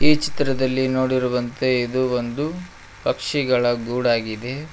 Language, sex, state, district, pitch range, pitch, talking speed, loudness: Kannada, male, Karnataka, Koppal, 120-145 Hz, 130 Hz, 90 wpm, -22 LUFS